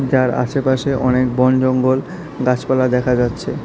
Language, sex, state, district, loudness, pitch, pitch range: Bengali, male, Tripura, South Tripura, -17 LUFS, 130 Hz, 125-130 Hz